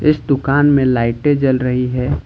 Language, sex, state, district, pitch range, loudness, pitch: Hindi, male, Jharkhand, Ranchi, 125-145 Hz, -15 LUFS, 135 Hz